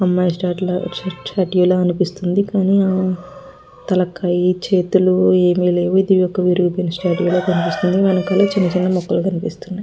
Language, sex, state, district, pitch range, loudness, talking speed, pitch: Telugu, female, Andhra Pradesh, Guntur, 180-185 Hz, -17 LUFS, 140 wpm, 180 Hz